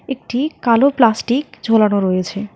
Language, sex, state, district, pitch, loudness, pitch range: Bengali, female, West Bengal, Alipurduar, 235 Hz, -16 LUFS, 210-265 Hz